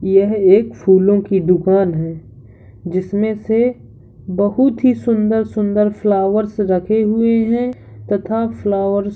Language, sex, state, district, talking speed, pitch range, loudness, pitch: Hindi, male, Uttar Pradesh, Hamirpur, 125 wpm, 185-220 Hz, -16 LUFS, 205 Hz